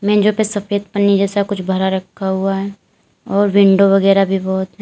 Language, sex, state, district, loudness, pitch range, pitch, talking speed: Hindi, female, Uttar Pradesh, Lalitpur, -15 LUFS, 195-205 Hz, 195 Hz, 200 wpm